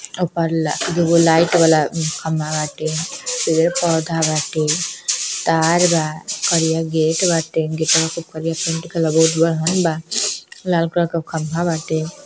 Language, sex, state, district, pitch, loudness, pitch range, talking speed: Bhojpuri, female, Uttar Pradesh, Deoria, 165 Hz, -18 LUFS, 160-170 Hz, 150 wpm